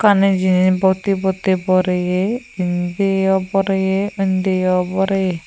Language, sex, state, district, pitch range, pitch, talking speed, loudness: Chakma, female, Tripura, Unakoti, 185-195 Hz, 190 Hz, 100 wpm, -17 LUFS